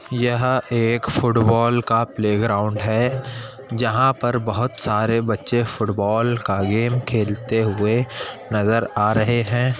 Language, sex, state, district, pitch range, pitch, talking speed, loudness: Hindi, male, Uttar Pradesh, Budaun, 110-120 Hz, 115 Hz, 140 wpm, -20 LUFS